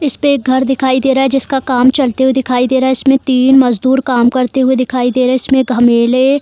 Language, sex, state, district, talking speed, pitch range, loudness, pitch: Hindi, female, Bihar, Darbhanga, 260 wpm, 255-265 Hz, -11 LUFS, 260 Hz